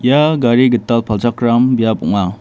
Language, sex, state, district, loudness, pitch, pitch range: Garo, male, Meghalaya, West Garo Hills, -13 LUFS, 120 Hz, 110-125 Hz